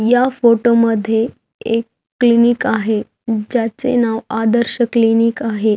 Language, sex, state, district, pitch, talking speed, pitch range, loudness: Marathi, female, Maharashtra, Aurangabad, 230 Hz, 115 wpm, 225-240 Hz, -15 LUFS